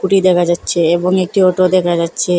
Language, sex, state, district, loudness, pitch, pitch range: Bengali, female, Assam, Hailakandi, -13 LUFS, 180 Hz, 175-185 Hz